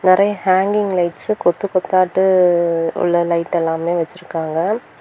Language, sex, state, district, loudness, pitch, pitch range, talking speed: Tamil, female, Tamil Nadu, Kanyakumari, -17 LUFS, 180 Hz, 170-190 Hz, 105 wpm